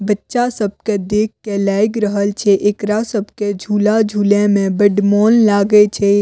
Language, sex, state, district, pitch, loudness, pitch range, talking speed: Maithili, female, Bihar, Madhepura, 205 Hz, -15 LUFS, 200-215 Hz, 165 wpm